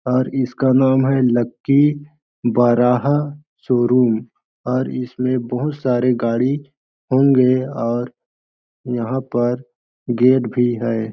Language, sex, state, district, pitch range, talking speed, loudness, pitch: Hindi, male, Chhattisgarh, Balrampur, 120-130 Hz, 100 wpm, -18 LUFS, 125 Hz